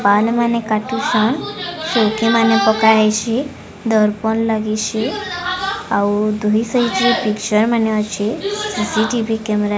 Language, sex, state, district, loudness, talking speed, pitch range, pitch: Odia, female, Odisha, Sambalpur, -17 LUFS, 125 wpm, 215-240 Hz, 220 Hz